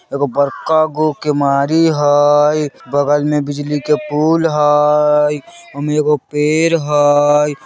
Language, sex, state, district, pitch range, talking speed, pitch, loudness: Bajjika, male, Bihar, Vaishali, 145-150 Hz, 125 wpm, 150 Hz, -14 LUFS